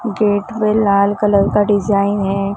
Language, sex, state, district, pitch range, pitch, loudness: Hindi, female, Maharashtra, Mumbai Suburban, 200-210 Hz, 205 Hz, -15 LUFS